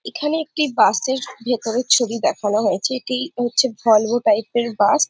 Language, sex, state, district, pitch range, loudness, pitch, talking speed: Bengali, female, West Bengal, Jhargram, 230-290 Hz, -19 LUFS, 245 Hz, 175 wpm